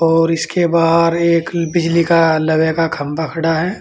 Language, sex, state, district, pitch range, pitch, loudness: Hindi, male, Uttar Pradesh, Saharanpur, 160-170 Hz, 165 Hz, -15 LUFS